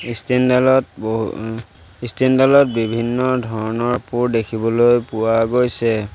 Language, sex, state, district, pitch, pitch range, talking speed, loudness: Assamese, male, Assam, Sonitpur, 115 Hz, 110-125 Hz, 105 wpm, -17 LUFS